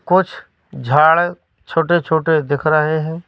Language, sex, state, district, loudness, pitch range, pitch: Hindi, male, Madhya Pradesh, Katni, -16 LUFS, 155-175 Hz, 160 Hz